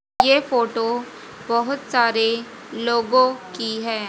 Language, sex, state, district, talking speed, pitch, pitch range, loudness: Hindi, female, Haryana, Rohtak, 100 wpm, 235 Hz, 230-255 Hz, -20 LUFS